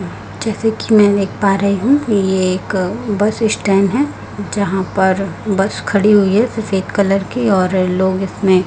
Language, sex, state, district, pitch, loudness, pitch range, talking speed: Hindi, female, Chhattisgarh, Raipur, 200 Hz, -15 LUFS, 190-210 Hz, 165 wpm